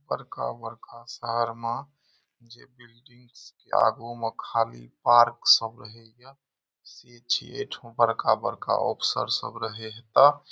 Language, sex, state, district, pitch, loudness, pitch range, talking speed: Maithili, male, Bihar, Saharsa, 120 Hz, -25 LUFS, 115-120 Hz, 110 wpm